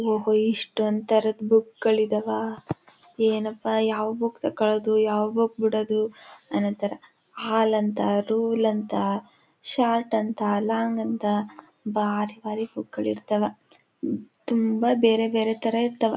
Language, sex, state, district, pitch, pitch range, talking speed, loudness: Kannada, female, Karnataka, Chamarajanagar, 220 Hz, 215-225 Hz, 120 wpm, -25 LUFS